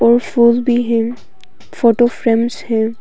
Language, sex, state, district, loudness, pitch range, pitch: Hindi, female, Arunachal Pradesh, Papum Pare, -15 LUFS, 230-240 Hz, 235 Hz